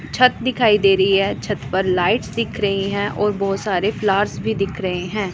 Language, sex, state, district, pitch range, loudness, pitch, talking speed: Hindi, male, Punjab, Pathankot, 190-210 Hz, -19 LUFS, 195 Hz, 215 wpm